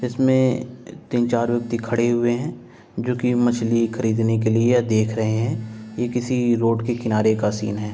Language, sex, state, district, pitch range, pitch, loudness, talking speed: Hindi, male, Uttar Pradesh, Jalaun, 110-120 Hz, 115 Hz, -21 LUFS, 180 wpm